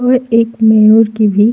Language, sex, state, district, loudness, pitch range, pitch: Hindi, female, Uttar Pradesh, Jalaun, -10 LUFS, 215-230 Hz, 225 Hz